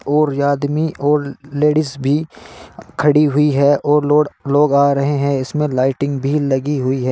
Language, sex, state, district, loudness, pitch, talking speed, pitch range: Hindi, male, Uttar Pradesh, Saharanpur, -16 LUFS, 145 Hz, 170 wpm, 140-150 Hz